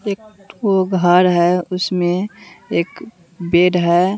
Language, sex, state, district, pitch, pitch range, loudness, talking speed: Hindi, female, Bihar, West Champaran, 180 Hz, 175-195 Hz, -16 LUFS, 115 wpm